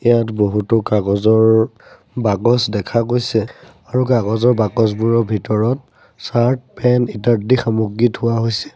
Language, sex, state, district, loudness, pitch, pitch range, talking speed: Assamese, male, Assam, Sonitpur, -16 LUFS, 115 Hz, 110-120 Hz, 110 wpm